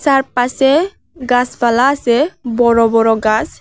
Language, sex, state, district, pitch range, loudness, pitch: Bengali, female, Tripura, West Tripura, 235-275 Hz, -14 LUFS, 245 Hz